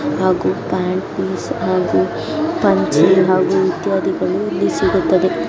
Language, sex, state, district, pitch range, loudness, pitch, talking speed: Kannada, female, Karnataka, Chamarajanagar, 185-190 Hz, -16 LUFS, 185 Hz, 85 wpm